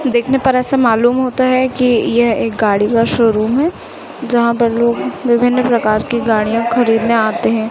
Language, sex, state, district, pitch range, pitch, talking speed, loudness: Hindi, female, Chhattisgarh, Raipur, 225-250 Hz, 235 Hz, 180 wpm, -14 LUFS